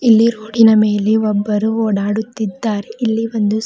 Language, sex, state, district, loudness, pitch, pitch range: Kannada, female, Karnataka, Bidar, -15 LUFS, 220 Hz, 210-225 Hz